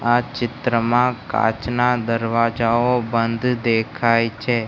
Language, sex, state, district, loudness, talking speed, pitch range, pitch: Gujarati, male, Gujarat, Gandhinagar, -19 LUFS, 90 wpm, 115-120 Hz, 115 Hz